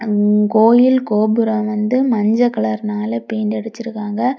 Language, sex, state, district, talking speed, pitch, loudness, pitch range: Tamil, female, Tamil Nadu, Kanyakumari, 95 wpm, 215 Hz, -16 LUFS, 210-235 Hz